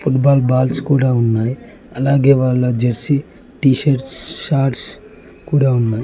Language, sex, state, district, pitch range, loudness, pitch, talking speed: Telugu, male, Telangana, Mahabubabad, 125-140 Hz, -15 LUFS, 135 Hz, 110 wpm